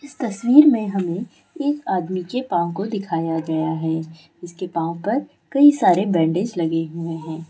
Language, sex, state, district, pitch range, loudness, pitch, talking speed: Hindi, female, Bihar, Bhagalpur, 165-225 Hz, -20 LUFS, 175 Hz, 170 wpm